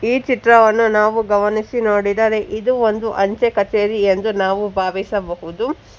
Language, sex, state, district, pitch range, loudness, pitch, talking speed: Kannada, female, Karnataka, Bangalore, 200-225 Hz, -16 LUFS, 215 Hz, 120 wpm